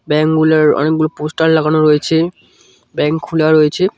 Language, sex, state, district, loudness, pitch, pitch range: Bengali, male, West Bengal, Cooch Behar, -13 LUFS, 155 Hz, 150-160 Hz